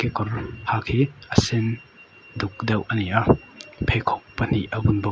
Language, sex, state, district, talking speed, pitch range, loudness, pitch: Mizo, male, Mizoram, Aizawl, 190 wpm, 110-120 Hz, -24 LUFS, 115 Hz